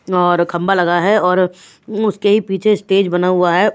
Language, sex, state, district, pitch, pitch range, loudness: Hindi, female, Bihar, West Champaran, 190 Hz, 180-210 Hz, -15 LUFS